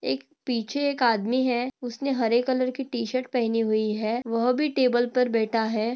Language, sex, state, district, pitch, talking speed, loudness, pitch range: Hindi, female, Maharashtra, Dhule, 245 Hz, 200 wpm, -25 LUFS, 230-255 Hz